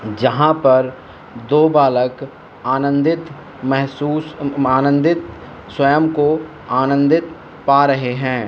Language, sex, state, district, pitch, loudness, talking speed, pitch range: Hindi, male, Maharashtra, Mumbai Suburban, 140 Hz, -16 LUFS, 90 wpm, 130-150 Hz